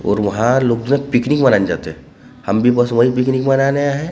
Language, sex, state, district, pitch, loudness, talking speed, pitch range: Hindi, male, Maharashtra, Gondia, 125 Hz, -15 LUFS, 290 wpm, 120-135 Hz